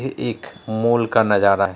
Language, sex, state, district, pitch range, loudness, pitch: Hindi, male, Bihar, Araria, 100-115 Hz, -19 LUFS, 110 Hz